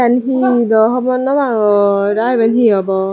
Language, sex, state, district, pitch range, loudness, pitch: Chakma, female, Tripura, Dhalai, 205-250 Hz, -13 LUFS, 230 Hz